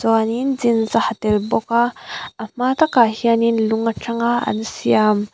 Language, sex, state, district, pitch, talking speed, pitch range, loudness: Mizo, female, Mizoram, Aizawl, 230 Hz, 170 wpm, 220-240 Hz, -18 LUFS